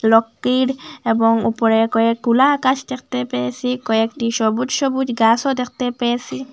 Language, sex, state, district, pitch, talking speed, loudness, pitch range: Bengali, female, Assam, Hailakandi, 240 Hz, 120 wpm, -18 LUFS, 225-260 Hz